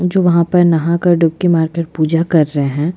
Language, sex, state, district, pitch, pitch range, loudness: Hindi, female, Chhattisgarh, Jashpur, 170 Hz, 160-175 Hz, -14 LUFS